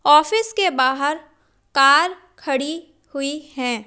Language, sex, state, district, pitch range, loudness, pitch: Hindi, female, Madhya Pradesh, Umaria, 275-335 Hz, -19 LUFS, 295 Hz